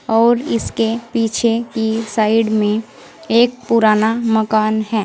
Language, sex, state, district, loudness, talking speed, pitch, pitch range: Hindi, female, Uttar Pradesh, Saharanpur, -16 LUFS, 120 wpm, 225 Hz, 215-230 Hz